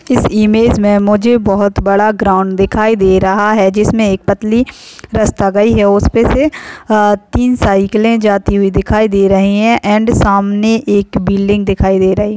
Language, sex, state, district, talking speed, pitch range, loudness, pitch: Hindi, female, Bihar, Kishanganj, 170 wpm, 195-220 Hz, -11 LUFS, 205 Hz